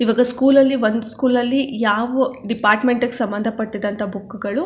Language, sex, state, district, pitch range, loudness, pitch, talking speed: Kannada, female, Karnataka, Chamarajanagar, 215-255 Hz, -18 LUFS, 230 Hz, 180 wpm